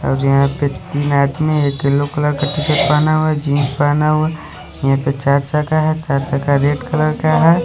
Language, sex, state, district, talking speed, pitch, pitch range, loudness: Hindi, male, Odisha, Khordha, 180 wpm, 145 Hz, 140-155 Hz, -16 LUFS